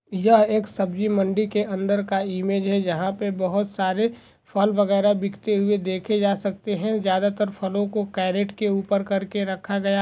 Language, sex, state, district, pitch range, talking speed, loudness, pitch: Hindi, male, Goa, North and South Goa, 195-210 Hz, 185 wpm, -23 LUFS, 200 Hz